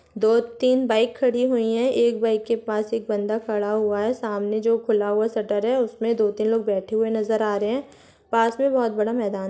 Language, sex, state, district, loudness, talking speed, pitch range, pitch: Hindi, female, Jharkhand, Sahebganj, -22 LUFS, 225 wpm, 215-235 Hz, 225 Hz